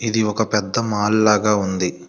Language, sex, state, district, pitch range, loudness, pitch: Telugu, male, Telangana, Hyderabad, 100-110 Hz, -19 LUFS, 105 Hz